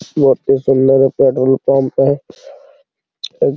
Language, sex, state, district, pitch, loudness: Hindi, male, Bihar, Araria, 135 Hz, -13 LUFS